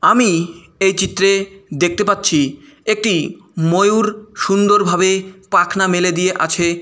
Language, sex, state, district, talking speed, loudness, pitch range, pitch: Bengali, male, West Bengal, Malda, 105 wpm, -16 LUFS, 175-200 Hz, 190 Hz